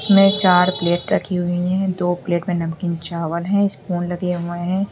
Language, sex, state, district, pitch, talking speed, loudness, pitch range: Hindi, female, Uttar Pradesh, Lalitpur, 175 Hz, 205 wpm, -19 LUFS, 175-185 Hz